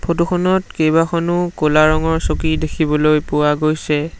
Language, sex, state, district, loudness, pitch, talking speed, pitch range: Assamese, male, Assam, Sonitpur, -16 LUFS, 155 Hz, 115 wpm, 155-170 Hz